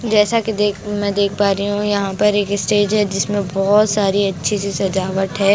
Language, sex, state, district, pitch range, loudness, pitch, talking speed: Hindi, female, Bihar, West Champaran, 195-210 Hz, -17 LUFS, 205 Hz, 215 wpm